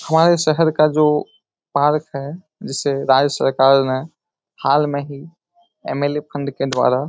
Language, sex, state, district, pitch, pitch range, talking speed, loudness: Hindi, male, Uttar Pradesh, Etah, 145 Hz, 135-155 Hz, 145 wpm, -18 LUFS